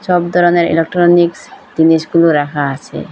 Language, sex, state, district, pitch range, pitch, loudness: Bengali, female, Assam, Hailakandi, 160-175 Hz, 170 Hz, -12 LUFS